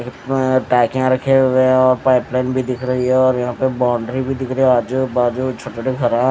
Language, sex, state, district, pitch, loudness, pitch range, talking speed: Hindi, male, Odisha, Nuapada, 130 Hz, -16 LUFS, 125-130 Hz, 210 wpm